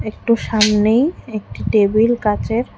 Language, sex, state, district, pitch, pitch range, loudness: Bengali, female, Tripura, West Tripura, 220 Hz, 210-235 Hz, -16 LUFS